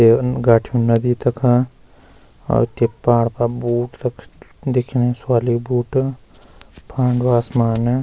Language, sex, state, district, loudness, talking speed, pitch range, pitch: Garhwali, male, Uttarakhand, Uttarkashi, -18 LUFS, 110 wpm, 115-125 Hz, 120 Hz